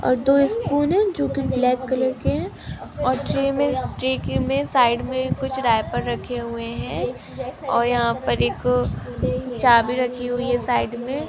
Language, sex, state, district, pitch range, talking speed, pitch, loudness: Hindi, female, Maharashtra, Chandrapur, 240-265 Hz, 170 wpm, 250 Hz, -22 LUFS